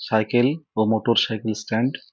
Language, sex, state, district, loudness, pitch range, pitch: Bengali, male, West Bengal, Jhargram, -22 LUFS, 110-125 Hz, 110 Hz